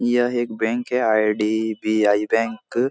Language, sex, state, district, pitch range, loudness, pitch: Hindi, male, Bihar, Supaul, 110-120 Hz, -21 LUFS, 110 Hz